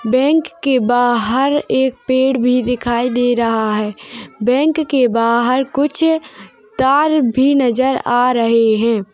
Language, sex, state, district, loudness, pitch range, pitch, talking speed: Hindi, female, Chhattisgarh, Rajnandgaon, -15 LUFS, 235-275 Hz, 250 Hz, 130 wpm